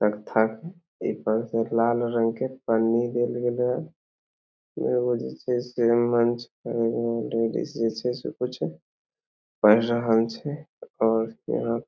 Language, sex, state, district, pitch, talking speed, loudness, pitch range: Maithili, male, Bihar, Samastipur, 115 Hz, 80 wpm, -25 LUFS, 115-125 Hz